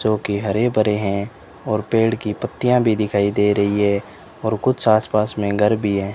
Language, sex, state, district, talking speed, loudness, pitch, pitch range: Hindi, male, Rajasthan, Bikaner, 215 wpm, -19 LUFS, 105 Hz, 100-110 Hz